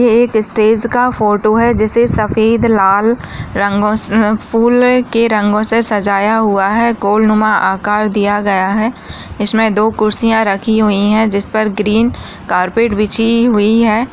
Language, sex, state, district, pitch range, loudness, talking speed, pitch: Hindi, female, Maharashtra, Nagpur, 210-230 Hz, -12 LUFS, 145 wpm, 215 Hz